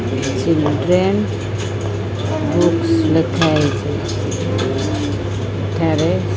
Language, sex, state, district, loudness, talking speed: Odia, female, Odisha, Khordha, -18 LUFS, 45 wpm